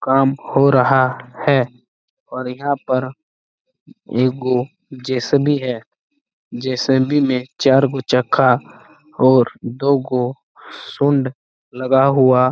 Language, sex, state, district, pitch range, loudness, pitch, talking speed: Hindi, male, Chhattisgarh, Bastar, 125-140 Hz, -17 LUFS, 130 Hz, 100 wpm